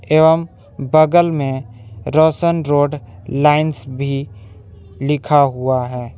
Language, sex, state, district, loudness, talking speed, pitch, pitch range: Hindi, male, Jharkhand, Palamu, -16 LUFS, 95 wpm, 140 Hz, 125-155 Hz